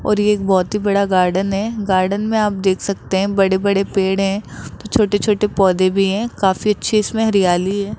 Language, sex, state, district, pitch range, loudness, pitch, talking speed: Hindi, male, Rajasthan, Jaipur, 190-210 Hz, -17 LUFS, 200 Hz, 210 wpm